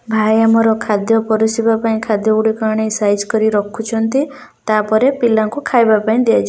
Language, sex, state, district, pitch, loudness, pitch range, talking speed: Odia, female, Odisha, Khordha, 220 Hz, -15 LUFS, 215-225 Hz, 140 wpm